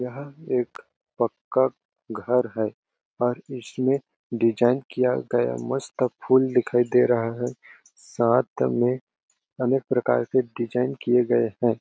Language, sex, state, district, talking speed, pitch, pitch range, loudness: Hindi, male, Chhattisgarh, Balrampur, 125 wpm, 125 Hz, 120-130 Hz, -24 LUFS